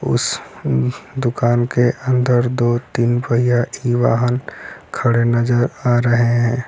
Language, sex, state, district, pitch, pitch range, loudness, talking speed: Hindi, male, Bihar, Lakhisarai, 120 Hz, 120-125 Hz, -17 LUFS, 125 wpm